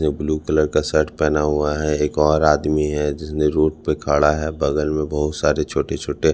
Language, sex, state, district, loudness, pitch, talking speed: Hindi, male, Bihar, Patna, -19 LUFS, 75 Hz, 200 wpm